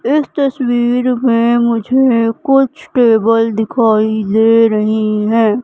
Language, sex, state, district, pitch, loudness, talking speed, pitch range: Hindi, female, Madhya Pradesh, Katni, 230 Hz, -13 LUFS, 105 wpm, 220-250 Hz